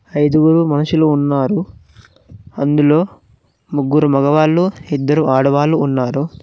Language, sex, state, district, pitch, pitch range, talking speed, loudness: Telugu, male, Telangana, Mahabubabad, 145 Hz, 135-155 Hz, 85 wpm, -14 LUFS